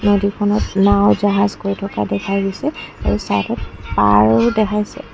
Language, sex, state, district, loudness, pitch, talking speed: Assamese, female, Assam, Kamrup Metropolitan, -17 LUFS, 200 Hz, 130 wpm